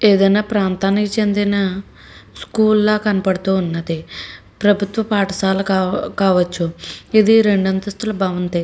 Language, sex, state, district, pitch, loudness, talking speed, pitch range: Telugu, female, Andhra Pradesh, Srikakulam, 195 Hz, -17 LUFS, 90 wpm, 185-210 Hz